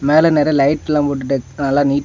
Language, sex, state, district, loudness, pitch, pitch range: Tamil, male, Tamil Nadu, Kanyakumari, -16 LUFS, 145 Hz, 140-150 Hz